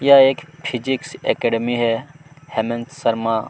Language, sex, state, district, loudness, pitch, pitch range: Hindi, male, Chhattisgarh, Kabirdham, -20 LUFS, 125 Hz, 115-145 Hz